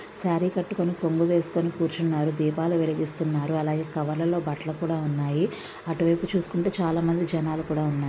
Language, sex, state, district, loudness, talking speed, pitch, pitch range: Telugu, female, Andhra Pradesh, Visakhapatnam, -26 LUFS, 155 wpm, 165 Hz, 155-170 Hz